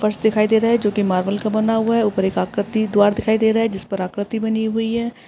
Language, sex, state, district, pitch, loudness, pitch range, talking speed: Hindi, female, Uttar Pradesh, Etah, 220 Hz, -19 LUFS, 205-225 Hz, 295 wpm